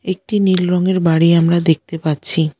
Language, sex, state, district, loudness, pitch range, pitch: Bengali, female, West Bengal, Alipurduar, -15 LUFS, 160-185 Hz, 170 Hz